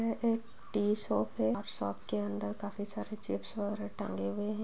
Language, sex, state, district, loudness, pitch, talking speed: Hindi, female, Bihar, Bhagalpur, -35 LUFS, 205 Hz, 205 wpm